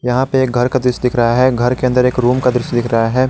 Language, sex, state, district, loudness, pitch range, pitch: Hindi, male, Jharkhand, Garhwa, -14 LUFS, 120-130 Hz, 125 Hz